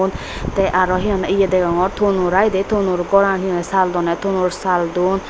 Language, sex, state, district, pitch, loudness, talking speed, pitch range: Chakma, female, Tripura, Dhalai, 190 Hz, -17 LUFS, 180 wpm, 180-195 Hz